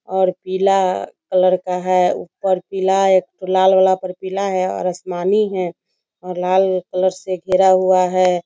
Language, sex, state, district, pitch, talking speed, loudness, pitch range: Hindi, female, Bihar, Begusarai, 185 Hz, 170 wpm, -17 LUFS, 185-190 Hz